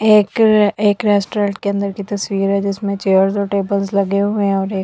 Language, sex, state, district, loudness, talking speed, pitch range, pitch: Hindi, female, Delhi, New Delhi, -16 LUFS, 225 wpm, 200-205 Hz, 200 Hz